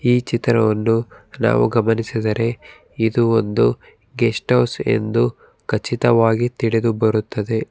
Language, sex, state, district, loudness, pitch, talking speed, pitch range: Kannada, male, Karnataka, Bangalore, -18 LUFS, 115 Hz, 95 wpm, 110-120 Hz